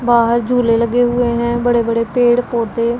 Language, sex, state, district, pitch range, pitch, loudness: Hindi, female, Punjab, Pathankot, 235-245 Hz, 240 Hz, -15 LUFS